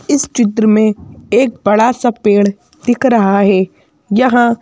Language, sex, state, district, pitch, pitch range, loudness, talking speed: Hindi, female, Madhya Pradesh, Bhopal, 225 Hz, 205-245 Hz, -12 LUFS, 145 wpm